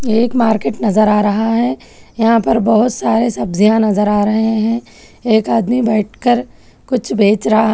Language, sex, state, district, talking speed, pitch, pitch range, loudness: Hindi, female, Telangana, Hyderabad, 160 wpm, 220 Hz, 215-230 Hz, -14 LUFS